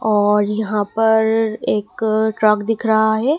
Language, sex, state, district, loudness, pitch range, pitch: Hindi, female, Madhya Pradesh, Dhar, -17 LUFS, 210-220 Hz, 220 Hz